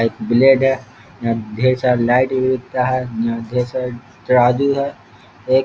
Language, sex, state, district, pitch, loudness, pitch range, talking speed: Hindi, male, Bihar, East Champaran, 125 Hz, -17 LUFS, 115-130 Hz, 180 wpm